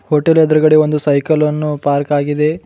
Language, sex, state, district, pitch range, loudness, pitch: Kannada, male, Karnataka, Bidar, 145-155 Hz, -13 LUFS, 150 Hz